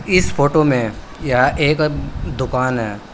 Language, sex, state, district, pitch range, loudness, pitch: Hindi, male, Uttar Pradesh, Saharanpur, 120-155 Hz, -17 LUFS, 140 Hz